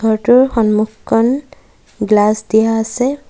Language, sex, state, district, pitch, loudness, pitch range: Assamese, female, Assam, Sonitpur, 225 Hz, -14 LUFS, 215-250 Hz